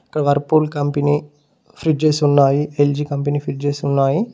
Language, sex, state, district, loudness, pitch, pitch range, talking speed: Telugu, male, Telangana, Mahabubabad, -18 LUFS, 145 Hz, 145-155 Hz, 125 wpm